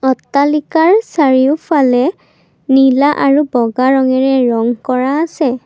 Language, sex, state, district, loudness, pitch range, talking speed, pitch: Assamese, female, Assam, Kamrup Metropolitan, -12 LUFS, 255-295 Hz, 95 wpm, 270 Hz